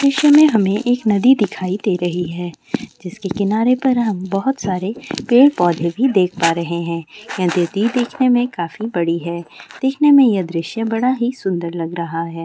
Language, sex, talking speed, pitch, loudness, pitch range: Maithili, female, 180 wpm, 200 Hz, -17 LUFS, 175-245 Hz